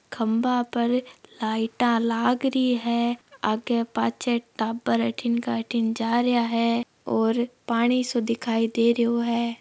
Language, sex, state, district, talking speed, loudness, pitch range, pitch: Marwari, female, Rajasthan, Nagaur, 130 wpm, -24 LUFS, 230-240 Hz, 235 Hz